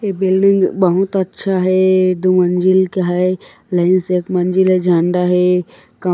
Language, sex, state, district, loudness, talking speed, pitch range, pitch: Chhattisgarhi, male, Chhattisgarh, Korba, -14 LUFS, 155 wpm, 180-190 Hz, 185 Hz